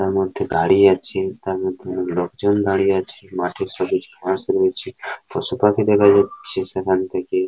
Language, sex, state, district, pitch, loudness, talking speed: Bengali, male, West Bengal, Paschim Medinipur, 100 Hz, -19 LUFS, 150 wpm